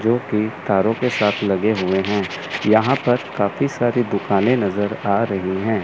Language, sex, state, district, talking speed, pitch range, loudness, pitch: Hindi, male, Chandigarh, Chandigarh, 165 wpm, 100-120 Hz, -19 LUFS, 110 Hz